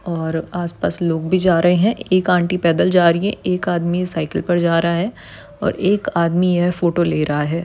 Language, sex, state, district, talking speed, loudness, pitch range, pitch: Hindi, male, Maharashtra, Nagpur, 220 wpm, -18 LUFS, 165-180 Hz, 175 Hz